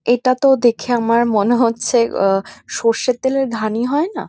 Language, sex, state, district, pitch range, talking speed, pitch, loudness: Bengali, female, West Bengal, North 24 Parganas, 230-255 Hz, 165 wpm, 240 Hz, -16 LUFS